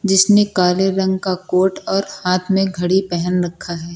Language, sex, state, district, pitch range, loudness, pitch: Hindi, male, Uttar Pradesh, Lucknow, 180-195 Hz, -17 LUFS, 185 Hz